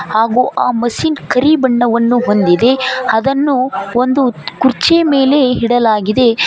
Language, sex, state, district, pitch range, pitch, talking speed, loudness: Kannada, female, Karnataka, Koppal, 230-265 Hz, 250 Hz, 100 wpm, -12 LUFS